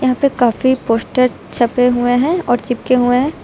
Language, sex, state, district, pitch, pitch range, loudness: Hindi, female, Uttar Pradesh, Lucknow, 250 Hz, 245-260 Hz, -15 LUFS